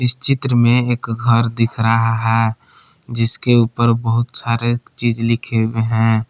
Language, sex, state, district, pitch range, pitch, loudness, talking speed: Hindi, male, Jharkhand, Palamu, 115-120 Hz, 115 Hz, -16 LUFS, 145 wpm